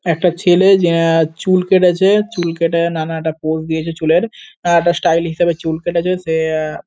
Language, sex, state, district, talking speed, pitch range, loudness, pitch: Bengali, male, West Bengal, North 24 Parganas, 185 wpm, 160-180 Hz, -15 LUFS, 170 Hz